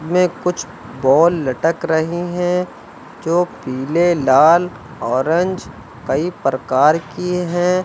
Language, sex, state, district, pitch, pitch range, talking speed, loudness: Hindi, male, Uttar Pradesh, Lucknow, 175 Hz, 160-180 Hz, 105 wpm, -17 LUFS